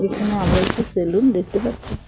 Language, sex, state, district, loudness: Bengali, female, West Bengal, Cooch Behar, -20 LUFS